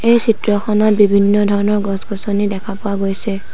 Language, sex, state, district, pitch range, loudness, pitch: Assamese, female, Assam, Sonitpur, 200-210 Hz, -15 LUFS, 205 Hz